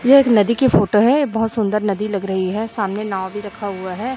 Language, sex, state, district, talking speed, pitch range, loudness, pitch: Hindi, female, Chhattisgarh, Raipur, 260 wpm, 200-230 Hz, -18 LUFS, 210 Hz